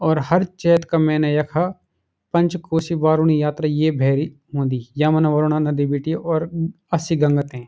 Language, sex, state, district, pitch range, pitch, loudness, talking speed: Garhwali, male, Uttarakhand, Uttarkashi, 145-165 Hz, 155 Hz, -19 LUFS, 155 wpm